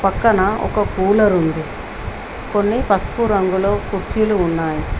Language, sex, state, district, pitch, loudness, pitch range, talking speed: Telugu, female, Telangana, Mahabubabad, 200 Hz, -17 LUFS, 185-215 Hz, 110 wpm